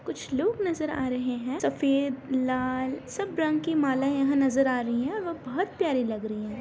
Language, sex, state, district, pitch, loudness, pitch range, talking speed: Hindi, female, Bihar, Darbhanga, 270 Hz, -27 LUFS, 255-310 Hz, 215 wpm